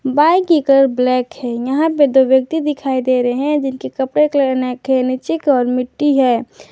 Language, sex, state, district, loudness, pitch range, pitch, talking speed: Hindi, female, Jharkhand, Garhwa, -15 LUFS, 255-295 Hz, 265 Hz, 205 wpm